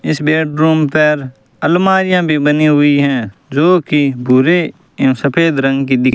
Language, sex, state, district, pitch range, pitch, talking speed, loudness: Hindi, male, Rajasthan, Bikaner, 135-160 Hz, 150 Hz, 155 wpm, -12 LUFS